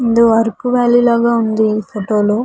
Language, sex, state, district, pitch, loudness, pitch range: Telugu, female, Andhra Pradesh, Visakhapatnam, 225 Hz, -14 LUFS, 215-235 Hz